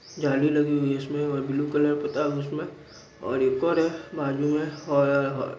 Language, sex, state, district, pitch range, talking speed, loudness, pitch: Hindi, male, Bihar, Muzaffarpur, 140-150 Hz, 185 wpm, -25 LUFS, 145 Hz